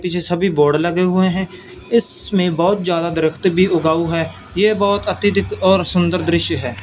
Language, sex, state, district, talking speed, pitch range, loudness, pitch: Hindi, male, Punjab, Fazilka, 175 wpm, 165-190 Hz, -17 LUFS, 180 Hz